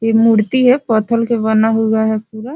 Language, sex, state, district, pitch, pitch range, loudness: Hindi, female, Bihar, Jahanabad, 225 Hz, 220-235 Hz, -14 LUFS